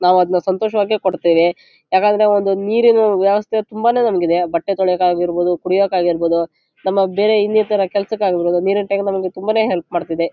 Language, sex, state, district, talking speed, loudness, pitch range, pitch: Kannada, male, Karnataka, Shimoga, 140 wpm, -16 LUFS, 175-210 Hz, 195 Hz